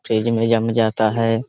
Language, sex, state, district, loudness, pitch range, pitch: Hindi, male, Bihar, Muzaffarpur, -18 LUFS, 110-115 Hz, 115 Hz